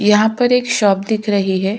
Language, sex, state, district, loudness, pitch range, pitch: Hindi, female, Chhattisgarh, Sukma, -15 LUFS, 200-230 Hz, 210 Hz